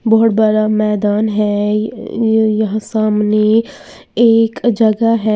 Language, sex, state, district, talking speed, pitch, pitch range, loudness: Hindi, female, Uttar Pradesh, Lalitpur, 110 wpm, 220 Hz, 215-225 Hz, -14 LUFS